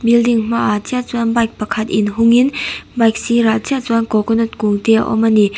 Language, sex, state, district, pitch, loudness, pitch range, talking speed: Mizo, female, Mizoram, Aizawl, 230 Hz, -15 LUFS, 220-235 Hz, 205 wpm